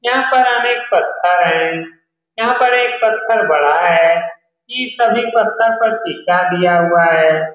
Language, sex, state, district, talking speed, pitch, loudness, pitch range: Hindi, male, Bihar, Saran, 160 wpm, 220 Hz, -13 LUFS, 170-235 Hz